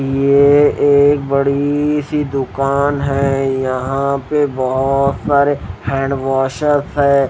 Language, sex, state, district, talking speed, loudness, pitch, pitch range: Hindi, male, Maharashtra, Washim, 105 wpm, -15 LUFS, 140 Hz, 135-145 Hz